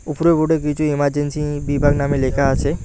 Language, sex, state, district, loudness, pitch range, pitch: Bengali, male, West Bengal, Alipurduar, -18 LUFS, 140-150 Hz, 145 Hz